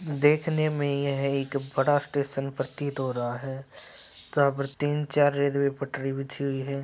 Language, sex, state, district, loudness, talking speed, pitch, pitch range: Hindi, male, Uttar Pradesh, Etah, -27 LUFS, 165 wpm, 140 Hz, 135-145 Hz